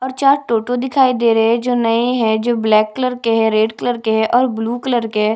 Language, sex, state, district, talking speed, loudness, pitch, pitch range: Hindi, female, Chhattisgarh, Jashpur, 270 wpm, -16 LUFS, 235 Hz, 225-250 Hz